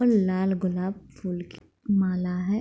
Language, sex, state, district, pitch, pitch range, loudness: Hindi, female, Bihar, Begusarai, 185 Hz, 180-195 Hz, -27 LUFS